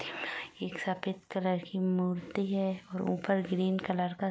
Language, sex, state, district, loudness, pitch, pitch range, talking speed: Hindi, female, Uttar Pradesh, Gorakhpur, -33 LUFS, 185 Hz, 180-190 Hz, 165 wpm